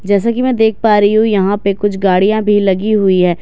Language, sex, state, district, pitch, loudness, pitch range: Hindi, female, Bihar, Katihar, 205 Hz, -12 LUFS, 195-215 Hz